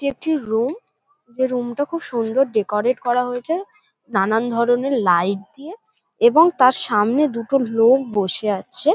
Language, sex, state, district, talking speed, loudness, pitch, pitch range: Bengali, female, West Bengal, North 24 Parganas, 155 wpm, -19 LUFS, 250 Hz, 225-300 Hz